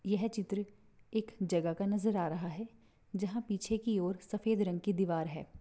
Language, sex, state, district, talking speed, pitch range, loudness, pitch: Hindi, female, Maharashtra, Pune, 190 wpm, 180-220 Hz, -36 LUFS, 205 Hz